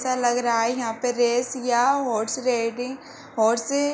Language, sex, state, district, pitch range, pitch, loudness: Hindi, female, Jharkhand, Sahebganj, 235-255 Hz, 245 Hz, -23 LUFS